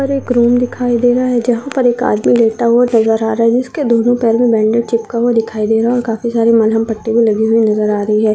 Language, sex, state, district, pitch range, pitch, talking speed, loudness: Hindi, female, Maharashtra, Sindhudurg, 225-245 Hz, 230 Hz, 265 wpm, -13 LUFS